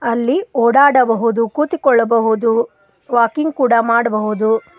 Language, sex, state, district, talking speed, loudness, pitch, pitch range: Kannada, female, Karnataka, Koppal, 75 wpm, -15 LUFS, 235 Hz, 225-255 Hz